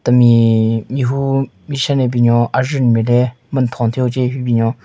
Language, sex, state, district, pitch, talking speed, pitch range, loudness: Rengma, male, Nagaland, Kohima, 125 Hz, 185 wpm, 115-130 Hz, -15 LUFS